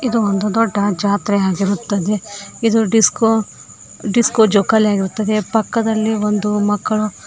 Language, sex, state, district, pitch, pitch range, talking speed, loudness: Kannada, female, Karnataka, Koppal, 210 Hz, 200-220 Hz, 115 wpm, -16 LUFS